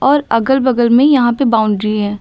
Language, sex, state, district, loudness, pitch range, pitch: Hindi, female, Uttar Pradesh, Lucknow, -12 LUFS, 215-270 Hz, 240 Hz